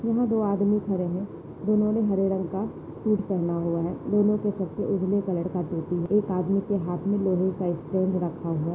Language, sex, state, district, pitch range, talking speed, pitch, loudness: Hindi, female, Maharashtra, Nagpur, 175-205 Hz, 225 wpm, 190 Hz, -26 LUFS